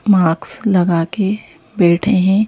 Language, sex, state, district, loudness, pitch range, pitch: Hindi, female, Madhya Pradesh, Bhopal, -15 LUFS, 170-205 Hz, 190 Hz